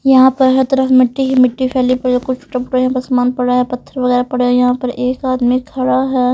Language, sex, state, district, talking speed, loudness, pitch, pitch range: Hindi, male, Punjab, Pathankot, 235 wpm, -14 LUFS, 255 Hz, 250-260 Hz